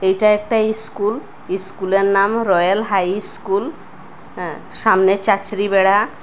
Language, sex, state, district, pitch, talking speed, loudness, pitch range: Bengali, female, Assam, Hailakandi, 200 Hz, 115 wpm, -17 LUFS, 190-215 Hz